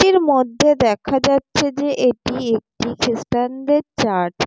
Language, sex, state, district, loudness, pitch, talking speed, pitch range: Bengali, female, West Bengal, Jalpaiguri, -18 LUFS, 255 Hz, 135 wpm, 235-285 Hz